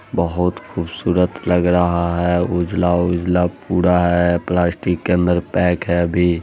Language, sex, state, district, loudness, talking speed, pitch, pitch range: Hindi, male, Bihar, Araria, -18 LUFS, 130 wpm, 90 Hz, 85-90 Hz